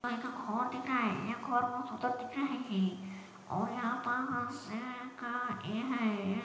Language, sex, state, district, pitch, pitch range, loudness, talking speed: Hindi, male, Chhattisgarh, Balrampur, 245 Hz, 215-250 Hz, -36 LUFS, 215 wpm